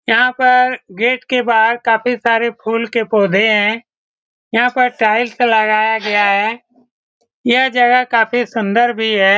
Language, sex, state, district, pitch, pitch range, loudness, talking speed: Hindi, male, Bihar, Saran, 230 Hz, 220-245 Hz, -14 LUFS, 145 wpm